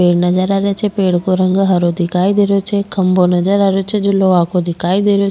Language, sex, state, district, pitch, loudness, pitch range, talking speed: Rajasthani, female, Rajasthan, Churu, 190 Hz, -14 LUFS, 180-200 Hz, 270 wpm